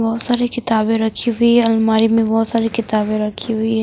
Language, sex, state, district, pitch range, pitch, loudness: Hindi, female, Bihar, West Champaran, 220-230 Hz, 225 Hz, -16 LUFS